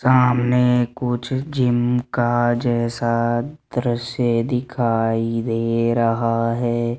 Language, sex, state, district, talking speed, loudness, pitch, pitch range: Hindi, male, Rajasthan, Jaipur, 85 wpm, -20 LUFS, 120 Hz, 115-125 Hz